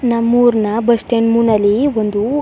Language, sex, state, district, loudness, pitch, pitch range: Kannada, female, Karnataka, Chamarajanagar, -14 LUFS, 230 Hz, 215-240 Hz